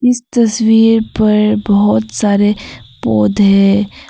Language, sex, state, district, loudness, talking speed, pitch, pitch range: Hindi, female, Arunachal Pradesh, Papum Pare, -12 LUFS, 90 wpm, 205 Hz, 195-225 Hz